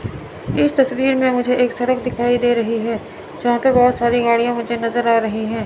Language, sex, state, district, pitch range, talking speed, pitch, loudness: Hindi, female, Chandigarh, Chandigarh, 230-250 Hz, 210 wpm, 240 Hz, -17 LUFS